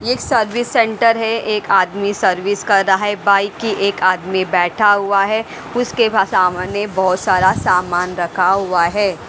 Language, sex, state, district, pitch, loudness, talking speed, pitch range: Hindi, female, Haryana, Rohtak, 200 Hz, -16 LUFS, 160 wpm, 185-215 Hz